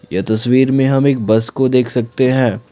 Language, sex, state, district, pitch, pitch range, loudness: Hindi, male, Assam, Kamrup Metropolitan, 125 Hz, 115-130 Hz, -14 LUFS